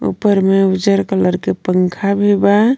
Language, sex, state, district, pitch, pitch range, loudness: Bhojpuri, female, Jharkhand, Palamu, 195 Hz, 185-200 Hz, -14 LUFS